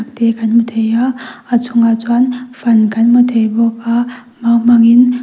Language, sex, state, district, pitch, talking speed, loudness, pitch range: Mizo, female, Mizoram, Aizawl, 235 Hz, 195 wpm, -12 LUFS, 230-245 Hz